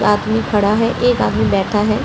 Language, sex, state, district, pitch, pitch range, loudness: Hindi, female, Uttar Pradesh, Etah, 215 Hz, 205-225 Hz, -16 LUFS